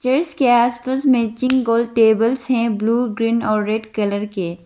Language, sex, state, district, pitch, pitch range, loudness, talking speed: Hindi, female, Arunachal Pradesh, Lower Dibang Valley, 230 Hz, 220-250 Hz, -18 LUFS, 180 wpm